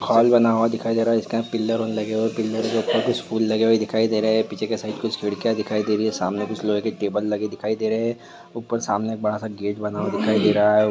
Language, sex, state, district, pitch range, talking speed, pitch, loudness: Hindi, male, Bihar, Madhepura, 105-115 Hz, 320 wpm, 110 Hz, -22 LUFS